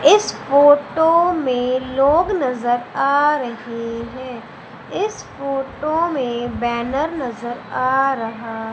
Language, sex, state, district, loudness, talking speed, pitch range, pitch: Hindi, female, Madhya Pradesh, Umaria, -19 LUFS, 105 wpm, 235-290 Hz, 255 Hz